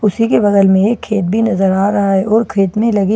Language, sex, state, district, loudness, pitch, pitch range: Hindi, female, Bihar, Katihar, -13 LUFS, 205 Hz, 195-220 Hz